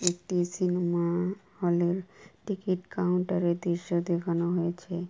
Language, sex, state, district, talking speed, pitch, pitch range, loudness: Bengali, female, West Bengal, Kolkata, 120 wpm, 175 Hz, 175-180 Hz, -29 LUFS